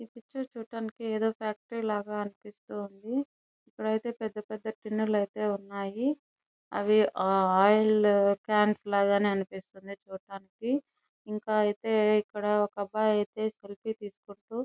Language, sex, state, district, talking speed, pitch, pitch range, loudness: Telugu, female, Andhra Pradesh, Chittoor, 115 wpm, 210 Hz, 200-220 Hz, -29 LUFS